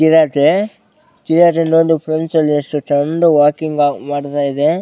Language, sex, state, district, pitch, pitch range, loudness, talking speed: Kannada, male, Karnataka, Bellary, 155 Hz, 145-165 Hz, -14 LUFS, 100 wpm